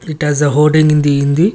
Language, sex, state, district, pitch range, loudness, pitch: English, male, Karnataka, Bangalore, 145-155 Hz, -12 LUFS, 150 Hz